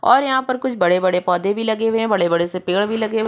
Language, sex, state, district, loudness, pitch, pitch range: Hindi, female, Uttar Pradesh, Jyotiba Phule Nagar, -18 LUFS, 215 Hz, 180-225 Hz